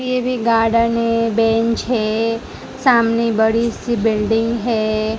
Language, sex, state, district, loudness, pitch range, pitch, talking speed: Hindi, female, Gujarat, Gandhinagar, -17 LUFS, 225-235 Hz, 230 Hz, 125 wpm